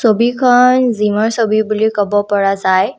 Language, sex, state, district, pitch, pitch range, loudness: Assamese, female, Assam, Kamrup Metropolitan, 215 Hz, 205-235 Hz, -13 LUFS